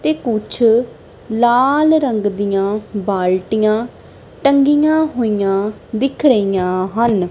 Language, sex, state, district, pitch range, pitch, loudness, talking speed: Punjabi, female, Punjab, Kapurthala, 200-270 Hz, 220 Hz, -16 LUFS, 90 wpm